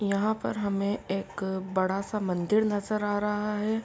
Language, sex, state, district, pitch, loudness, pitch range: Hindi, female, Uttar Pradesh, Etah, 205 Hz, -29 LUFS, 195-210 Hz